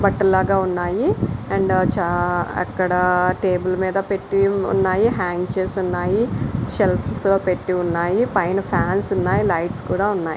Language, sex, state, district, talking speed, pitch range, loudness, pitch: Telugu, female, Andhra Pradesh, Visakhapatnam, 125 wpm, 180-195 Hz, -20 LUFS, 185 Hz